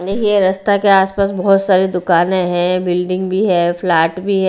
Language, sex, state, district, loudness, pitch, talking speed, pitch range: Hindi, female, Bihar, Patna, -14 LUFS, 185 Hz, 185 wpm, 180-195 Hz